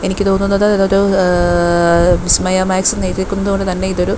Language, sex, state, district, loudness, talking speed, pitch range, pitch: Malayalam, female, Kerala, Thiruvananthapuram, -13 LUFS, 160 wpm, 180-195 Hz, 190 Hz